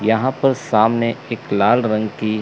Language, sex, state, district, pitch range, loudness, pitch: Hindi, male, Chandigarh, Chandigarh, 110-125 Hz, -18 LUFS, 115 Hz